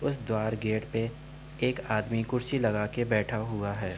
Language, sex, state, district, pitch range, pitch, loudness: Hindi, male, Uttar Pradesh, Budaun, 110-125 Hz, 115 Hz, -30 LUFS